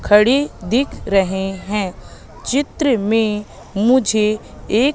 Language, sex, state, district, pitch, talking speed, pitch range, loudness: Hindi, female, Madhya Pradesh, Katni, 215 Hz, 95 wpm, 200-260 Hz, -18 LUFS